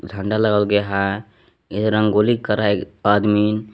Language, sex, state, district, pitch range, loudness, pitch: Hindi, male, Jharkhand, Palamu, 100-110 Hz, -18 LUFS, 105 Hz